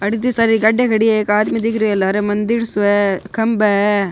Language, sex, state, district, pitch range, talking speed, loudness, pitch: Rajasthani, male, Rajasthan, Nagaur, 205-225 Hz, 245 wpm, -16 LUFS, 215 Hz